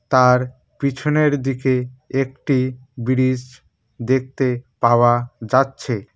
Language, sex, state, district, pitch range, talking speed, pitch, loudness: Bengali, male, West Bengal, Cooch Behar, 120-135 Hz, 80 wpm, 130 Hz, -19 LUFS